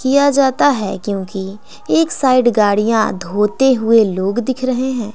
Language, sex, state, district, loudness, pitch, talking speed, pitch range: Hindi, female, Bihar, West Champaran, -15 LUFS, 225 Hz, 150 wpm, 200-260 Hz